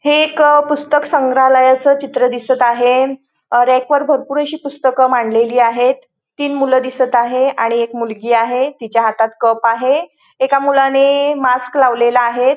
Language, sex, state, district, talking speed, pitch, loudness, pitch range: Marathi, female, Goa, North and South Goa, 145 wpm, 260 Hz, -13 LUFS, 240-280 Hz